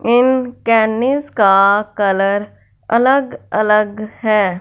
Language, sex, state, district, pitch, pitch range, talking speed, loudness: Hindi, female, Punjab, Fazilka, 215 Hz, 200-240 Hz, 90 wpm, -15 LUFS